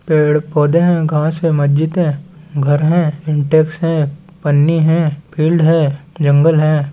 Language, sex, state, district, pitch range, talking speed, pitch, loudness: Chhattisgarhi, male, Chhattisgarh, Balrampur, 150-165 Hz, 155 wpm, 155 Hz, -14 LUFS